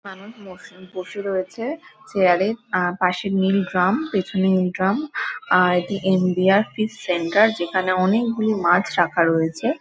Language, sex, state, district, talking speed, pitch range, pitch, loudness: Bengali, female, West Bengal, Dakshin Dinajpur, 140 wpm, 180-215 Hz, 190 Hz, -20 LUFS